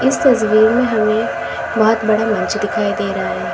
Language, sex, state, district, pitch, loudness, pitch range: Hindi, female, Uttar Pradesh, Lalitpur, 220 Hz, -16 LUFS, 215-240 Hz